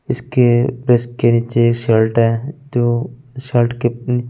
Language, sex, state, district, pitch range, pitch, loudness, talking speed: Hindi, male, Punjab, Fazilka, 120-125 Hz, 120 Hz, -16 LUFS, 155 wpm